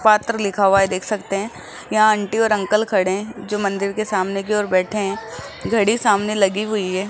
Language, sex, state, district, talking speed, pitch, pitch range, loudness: Hindi, male, Rajasthan, Jaipur, 220 wpm, 210 Hz, 195-215 Hz, -19 LUFS